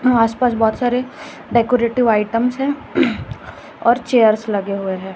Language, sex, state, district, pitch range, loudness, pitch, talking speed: Hindi, female, Chhattisgarh, Raipur, 220-250 Hz, -17 LUFS, 235 Hz, 130 wpm